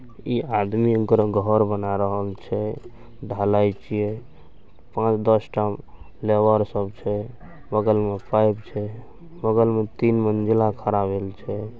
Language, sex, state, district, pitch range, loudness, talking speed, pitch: Maithili, male, Bihar, Saharsa, 105-115 Hz, -23 LUFS, 125 wpm, 110 Hz